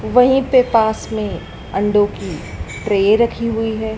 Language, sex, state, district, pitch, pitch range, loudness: Hindi, male, Madhya Pradesh, Dhar, 220 Hz, 200-230 Hz, -17 LUFS